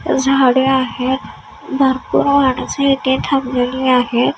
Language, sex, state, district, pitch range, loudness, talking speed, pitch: Marathi, female, Maharashtra, Gondia, 255-275 Hz, -15 LUFS, 95 wpm, 265 Hz